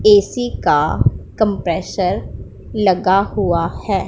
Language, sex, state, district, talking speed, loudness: Hindi, female, Punjab, Pathankot, 90 wpm, -17 LUFS